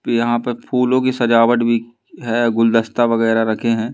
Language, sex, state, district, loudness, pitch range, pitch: Hindi, male, Madhya Pradesh, Umaria, -16 LUFS, 115-120 Hz, 115 Hz